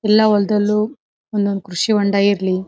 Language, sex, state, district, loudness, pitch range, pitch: Kannada, female, Karnataka, Dharwad, -17 LUFS, 200-210 Hz, 205 Hz